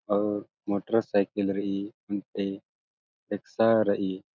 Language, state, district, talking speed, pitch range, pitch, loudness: Kurukh, Chhattisgarh, Jashpur, 85 wpm, 100-110 Hz, 100 Hz, -28 LUFS